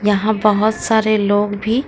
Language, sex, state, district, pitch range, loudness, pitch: Hindi, female, Uttar Pradesh, Lucknow, 205-220 Hz, -16 LUFS, 215 Hz